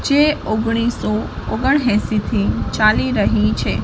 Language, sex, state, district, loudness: Gujarati, female, Gujarat, Gandhinagar, -17 LUFS